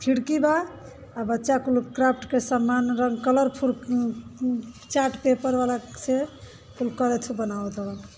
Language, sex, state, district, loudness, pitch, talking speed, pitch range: Bhojpuri, female, Uttar Pradesh, Varanasi, -25 LUFS, 250 Hz, 155 wpm, 240-260 Hz